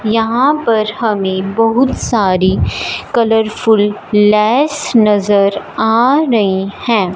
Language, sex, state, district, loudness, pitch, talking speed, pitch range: Hindi, female, Punjab, Fazilka, -13 LUFS, 220 Hz, 90 wpm, 200-235 Hz